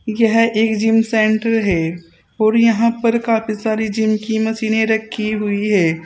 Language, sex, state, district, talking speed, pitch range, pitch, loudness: Hindi, female, Uttar Pradesh, Saharanpur, 160 wpm, 215-225 Hz, 220 Hz, -16 LUFS